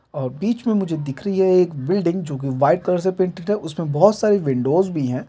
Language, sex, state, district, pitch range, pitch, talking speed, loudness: Hindi, male, Jharkhand, Jamtara, 140-195 Hz, 180 Hz, 240 wpm, -20 LUFS